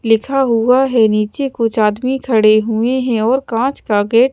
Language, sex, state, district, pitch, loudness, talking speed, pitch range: Hindi, female, Chandigarh, Chandigarh, 230 Hz, -14 LUFS, 195 wpm, 220-260 Hz